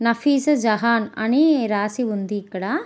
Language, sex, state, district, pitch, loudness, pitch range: Telugu, female, Andhra Pradesh, Visakhapatnam, 230 Hz, -20 LUFS, 210-275 Hz